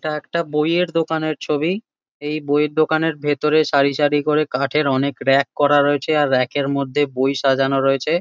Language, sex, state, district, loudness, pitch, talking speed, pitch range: Bengali, male, West Bengal, Jalpaiguri, -19 LUFS, 145 Hz, 175 wpm, 140-155 Hz